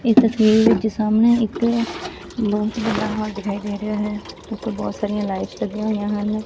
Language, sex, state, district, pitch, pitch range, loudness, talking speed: Punjabi, female, Punjab, Fazilka, 215 Hz, 210-225 Hz, -20 LUFS, 165 wpm